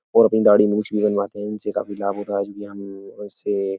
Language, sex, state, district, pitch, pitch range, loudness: Hindi, male, Uttar Pradesh, Etah, 105 Hz, 100-105 Hz, -20 LUFS